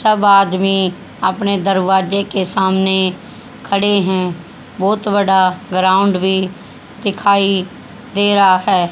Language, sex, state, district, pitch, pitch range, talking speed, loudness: Hindi, female, Haryana, Rohtak, 195 Hz, 190-200 Hz, 110 wpm, -15 LUFS